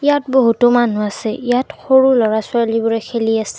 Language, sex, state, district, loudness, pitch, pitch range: Assamese, female, Assam, Kamrup Metropolitan, -15 LUFS, 235 Hz, 225-255 Hz